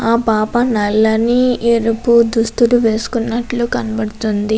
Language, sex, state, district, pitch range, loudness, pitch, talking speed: Telugu, female, Andhra Pradesh, Anantapur, 220-235 Hz, -15 LUFS, 230 Hz, 90 wpm